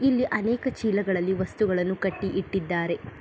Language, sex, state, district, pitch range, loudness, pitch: Kannada, female, Karnataka, Mysore, 185-220 Hz, -26 LUFS, 195 Hz